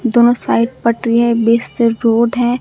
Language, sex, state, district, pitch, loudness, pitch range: Hindi, female, Bihar, Katihar, 235 Hz, -14 LUFS, 230-240 Hz